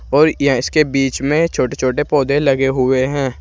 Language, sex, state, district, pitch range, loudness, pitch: Hindi, male, Uttar Pradesh, Saharanpur, 130-145 Hz, -16 LUFS, 135 Hz